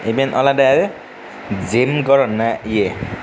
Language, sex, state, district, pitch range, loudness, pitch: Chakma, male, Tripura, Unakoti, 115-135 Hz, -16 LUFS, 130 Hz